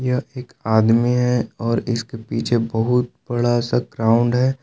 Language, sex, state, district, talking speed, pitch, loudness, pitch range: Hindi, male, Jharkhand, Palamu, 155 wpm, 120 Hz, -20 LUFS, 115-125 Hz